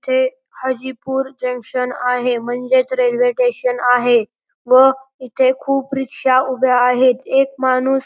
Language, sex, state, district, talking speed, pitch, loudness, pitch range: Marathi, male, Maharashtra, Pune, 120 wpm, 260 Hz, -16 LUFS, 250-270 Hz